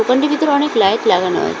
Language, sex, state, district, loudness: Bengali, female, West Bengal, Cooch Behar, -15 LUFS